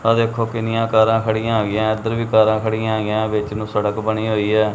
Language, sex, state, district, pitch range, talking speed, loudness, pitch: Punjabi, male, Punjab, Kapurthala, 110-115 Hz, 200 wpm, -19 LUFS, 110 Hz